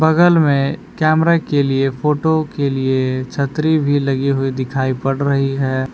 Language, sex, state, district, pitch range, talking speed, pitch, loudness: Hindi, male, Jharkhand, Palamu, 135-155 Hz, 160 wpm, 140 Hz, -16 LUFS